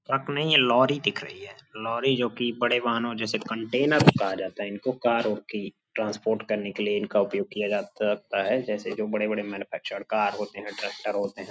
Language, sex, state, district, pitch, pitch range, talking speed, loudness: Hindi, male, Uttar Pradesh, Gorakhpur, 110 Hz, 105-120 Hz, 215 wpm, -26 LUFS